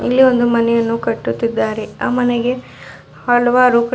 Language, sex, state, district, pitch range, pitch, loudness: Kannada, female, Karnataka, Bidar, 230-250 Hz, 240 Hz, -15 LUFS